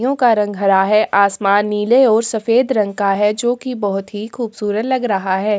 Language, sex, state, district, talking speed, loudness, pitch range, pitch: Hindi, female, Chhattisgarh, Kabirdham, 215 wpm, -16 LUFS, 200-235 Hz, 210 Hz